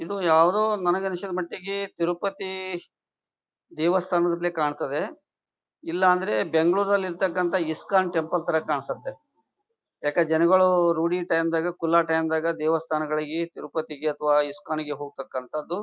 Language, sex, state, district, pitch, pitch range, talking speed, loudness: Kannada, male, Karnataka, Bijapur, 170 Hz, 160-185 Hz, 105 wpm, -25 LUFS